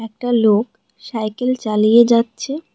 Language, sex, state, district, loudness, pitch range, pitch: Bengali, female, West Bengal, Alipurduar, -16 LUFS, 220-245 Hz, 230 Hz